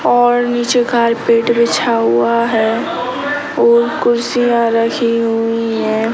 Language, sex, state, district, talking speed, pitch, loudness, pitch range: Hindi, male, Bihar, Sitamarhi, 105 wpm, 235 Hz, -14 LUFS, 230-240 Hz